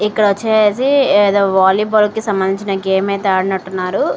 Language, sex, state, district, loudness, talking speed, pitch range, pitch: Telugu, female, Andhra Pradesh, Srikakulam, -14 LUFS, 115 wpm, 190-215 Hz, 200 Hz